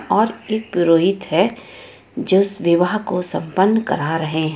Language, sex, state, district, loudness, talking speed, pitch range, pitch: Hindi, female, Jharkhand, Ranchi, -18 LUFS, 155 wpm, 170-215 Hz, 185 Hz